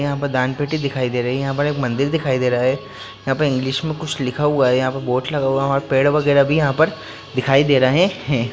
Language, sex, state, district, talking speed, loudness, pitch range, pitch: Hindi, male, Bihar, Jahanabad, 255 wpm, -18 LUFS, 130-145 Hz, 135 Hz